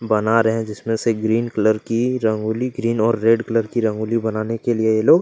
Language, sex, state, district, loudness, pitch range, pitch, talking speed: Hindi, male, Chhattisgarh, Kabirdham, -19 LUFS, 110-115 Hz, 115 Hz, 240 wpm